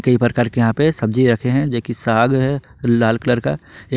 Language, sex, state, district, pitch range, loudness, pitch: Hindi, male, Jharkhand, Ranchi, 115-130 Hz, -17 LUFS, 120 Hz